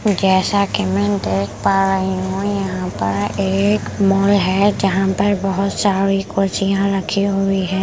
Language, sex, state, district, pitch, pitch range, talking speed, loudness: Hindi, female, Punjab, Pathankot, 195 Hz, 180-195 Hz, 160 wpm, -17 LUFS